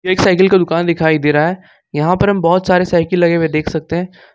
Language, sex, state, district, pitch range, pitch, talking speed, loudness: Hindi, male, Jharkhand, Ranchi, 160-185 Hz, 175 Hz, 260 wpm, -14 LUFS